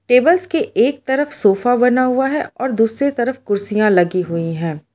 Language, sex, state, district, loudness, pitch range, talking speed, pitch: Hindi, female, Gujarat, Valsad, -16 LUFS, 200-270 Hz, 180 wpm, 245 Hz